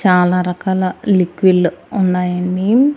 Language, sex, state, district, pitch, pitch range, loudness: Telugu, female, Andhra Pradesh, Annamaya, 185 Hz, 180-190 Hz, -15 LUFS